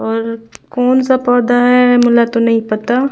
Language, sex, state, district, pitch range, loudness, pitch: Surgujia, female, Chhattisgarh, Sarguja, 230-250 Hz, -12 LUFS, 245 Hz